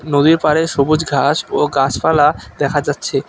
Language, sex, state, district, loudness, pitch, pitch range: Bengali, male, West Bengal, Alipurduar, -15 LUFS, 155 Hz, 145-160 Hz